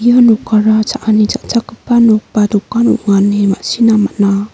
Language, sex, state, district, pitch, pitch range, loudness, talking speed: Garo, female, Meghalaya, North Garo Hills, 215 Hz, 205-235 Hz, -12 LUFS, 145 wpm